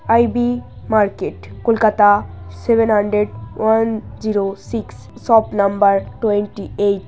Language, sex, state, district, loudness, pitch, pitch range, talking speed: Bengali, female, West Bengal, North 24 Parganas, -17 LUFS, 210 Hz, 200-225 Hz, 110 wpm